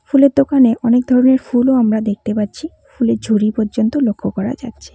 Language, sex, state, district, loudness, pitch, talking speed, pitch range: Bengali, female, West Bengal, Cooch Behar, -15 LUFS, 240 Hz, 170 wpm, 220-260 Hz